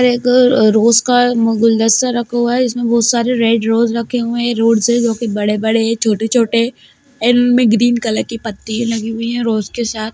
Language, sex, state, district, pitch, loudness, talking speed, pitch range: Hindi, female, Bihar, Gaya, 230 Hz, -14 LUFS, 200 wpm, 225-240 Hz